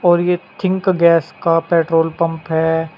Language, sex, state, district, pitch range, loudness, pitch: Hindi, male, Uttar Pradesh, Saharanpur, 165-175 Hz, -16 LUFS, 165 Hz